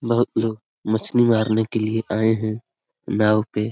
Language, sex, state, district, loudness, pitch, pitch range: Hindi, male, Bihar, Lakhisarai, -21 LUFS, 110 Hz, 110-115 Hz